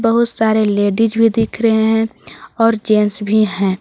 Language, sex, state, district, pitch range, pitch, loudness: Hindi, female, Jharkhand, Garhwa, 210-225 Hz, 220 Hz, -15 LUFS